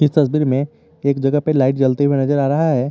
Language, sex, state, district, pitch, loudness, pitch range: Hindi, male, Jharkhand, Garhwa, 140 Hz, -17 LUFS, 135-150 Hz